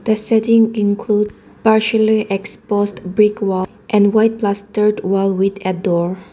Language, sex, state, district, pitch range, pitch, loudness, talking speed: English, female, Nagaland, Dimapur, 195-220 Hz, 210 Hz, -16 LUFS, 140 wpm